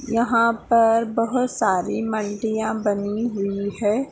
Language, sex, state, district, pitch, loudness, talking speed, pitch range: Hindi, female, Bihar, Jahanabad, 225 Hz, -21 LUFS, 100 wpm, 210-230 Hz